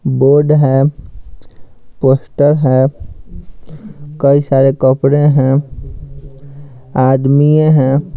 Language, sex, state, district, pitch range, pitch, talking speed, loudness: Hindi, male, Bihar, Patna, 130-145 Hz, 135 Hz, 75 wpm, -11 LUFS